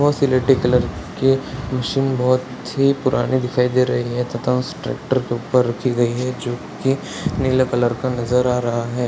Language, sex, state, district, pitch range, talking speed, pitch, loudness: Hindi, male, Bihar, Purnia, 125-130 Hz, 190 wpm, 125 Hz, -19 LUFS